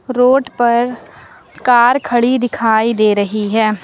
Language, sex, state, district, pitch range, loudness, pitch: Hindi, female, Uttar Pradesh, Lucknow, 220-250 Hz, -14 LUFS, 240 Hz